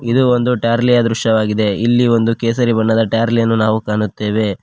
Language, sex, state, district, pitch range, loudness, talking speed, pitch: Kannada, male, Karnataka, Koppal, 110-120 Hz, -15 LUFS, 170 wpm, 115 Hz